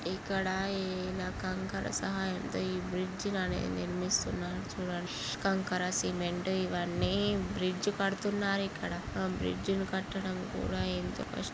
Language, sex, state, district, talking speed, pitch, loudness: Telugu, female, Andhra Pradesh, Guntur, 110 wpm, 180 Hz, -34 LUFS